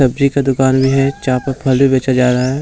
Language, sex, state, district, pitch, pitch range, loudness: Hindi, male, Bihar, Gaya, 135 Hz, 130-135 Hz, -14 LUFS